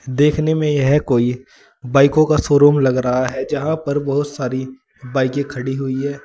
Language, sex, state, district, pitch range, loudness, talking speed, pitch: Hindi, male, Uttar Pradesh, Saharanpur, 130-145 Hz, -17 LUFS, 175 wpm, 140 Hz